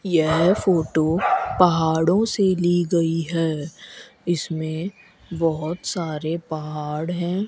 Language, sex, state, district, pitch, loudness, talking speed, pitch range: Hindi, female, Rajasthan, Bikaner, 165 Hz, -22 LUFS, 95 wpm, 160-180 Hz